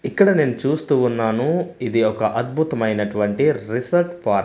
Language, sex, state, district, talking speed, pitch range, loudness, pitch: Telugu, male, Andhra Pradesh, Manyam, 120 wpm, 110-155 Hz, -20 LUFS, 120 Hz